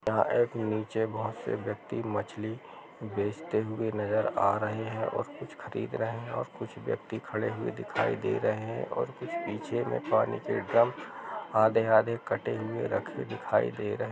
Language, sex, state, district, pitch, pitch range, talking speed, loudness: Hindi, male, Chhattisgarh, Rajnandgaon, 110 Hz, 110-115 Hz, 180 wpm, -31 LUFS